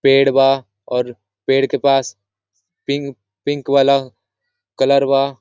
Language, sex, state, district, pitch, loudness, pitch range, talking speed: Hindi, male, Jharkhand, Sahebganj, 135 Hz, -17 LUFS, 120-140 Hz, 120 wpm